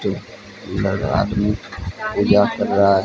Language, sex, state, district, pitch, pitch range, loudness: Hindi, male, Odisha, Sambalpur, 100 Hz, 100-105 Hz, -19 LUFS